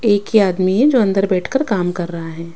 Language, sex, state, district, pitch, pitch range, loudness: Hindi, female, Punjab, Kapurthala, 195 Hz, 175-210 Hz, -16 LUFS